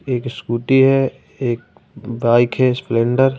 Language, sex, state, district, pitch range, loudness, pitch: Hindi, male, Madhya Pradesh, Katni, 120-135 Hz, -17 LUFS, 125 Hz